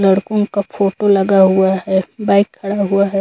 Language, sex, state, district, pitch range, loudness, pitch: Hindi, female, Chhattisgarh, Korba, 190-200 Hz, -15 LUFS, 200 Hz